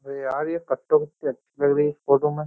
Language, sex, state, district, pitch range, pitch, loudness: Hindi, male, Uttar Pradesh, Jyotiba Phule Nagar, 140-155 Hz, 150 Hz, -24 LUFS